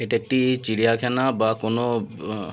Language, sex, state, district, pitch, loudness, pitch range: Bengali, male, West Bengal, Jalpaiguri, 115 Hz, -23 LUFS, 110-125 Hz